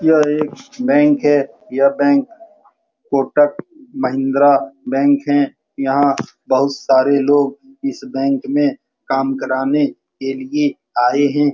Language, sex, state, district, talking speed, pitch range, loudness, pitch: Hindi, male, Bihar, Saran, 125 wpm, 135-150 Hz, -16 LUFS, 140 Hz